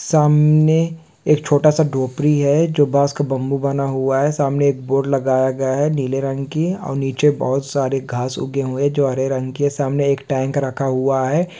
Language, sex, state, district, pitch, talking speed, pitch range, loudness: Hindi, male, Bihar, Supaul, 140 Hz, 205 wpm, 135-150 Hz, -18 LUFS